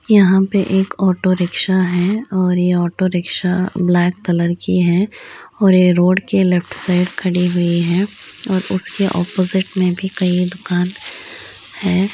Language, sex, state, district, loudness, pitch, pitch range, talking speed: Hindi, female, Uttar Pradesh, Gorakhpur, -16 LUFS, 185 Hz, 180-190 Hz, 155 wpm